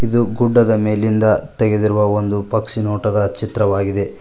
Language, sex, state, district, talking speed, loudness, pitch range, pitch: Kannada, male, Karnataka, Koppal, 115 wpm, -17 LUFS, 105-110 Hz, 105 Hz